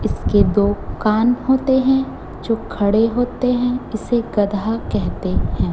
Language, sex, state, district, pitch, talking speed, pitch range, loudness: Hindi, female, Chhattisgarh, Raipur, 225 Hz, 135 wpm, 205-250 Hz, -18 LUFS